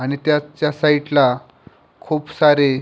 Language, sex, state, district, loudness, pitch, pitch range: Marathi, male, Maharashtra, Pune, -17 LUFS, 150 Hz, 140-150 Hz